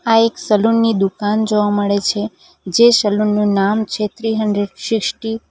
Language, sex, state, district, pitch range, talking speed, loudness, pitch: Gujarati, female, Gujarat, Valsad, 205-225 Hz, 185 wpm, -16 LUFS, 210 Hz